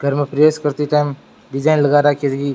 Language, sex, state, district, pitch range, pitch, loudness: Rajasthani, male, Rajasthan, Churu, 140-150 Hz, 145 Hz, -16 LUFS